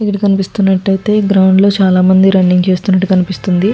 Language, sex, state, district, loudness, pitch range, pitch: Telugu, female, Andhra Pradesh, Guntur, -11 LUFS, 185-200 Hz, 190 Hz